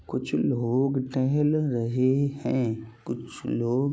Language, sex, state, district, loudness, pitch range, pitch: Hindi, male, Chhattisgarh, Balrampur, -26 LUFS, 120-140 Hz, 130 Hz